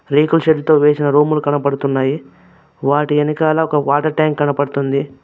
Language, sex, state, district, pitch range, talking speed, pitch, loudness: Telugu, male, Telangana, Mahabubabad, 140-155 Hz, 125 wpm, 145 Hz, -15 LUFS